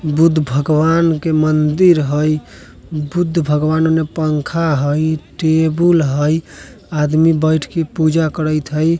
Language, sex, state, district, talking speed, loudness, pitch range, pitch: Maithili, male, Bihar, Vaishali, 120 wpm, -15 LUFS, 150-165 Hz, 155 Hz